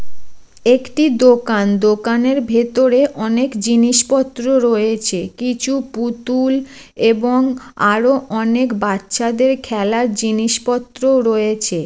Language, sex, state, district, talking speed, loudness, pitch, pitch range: Bengali, female, West Bengal, Jalpaiguri, 80 wpm, -15 LUFS, 240 Hz, 220-260 Hz